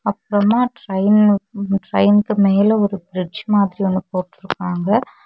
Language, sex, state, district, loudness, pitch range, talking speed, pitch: Tamil, female, Tamil Nadu, Kanyakumari, -17 LUFS, 190-210 Hz, 105 wpm, 200 Hz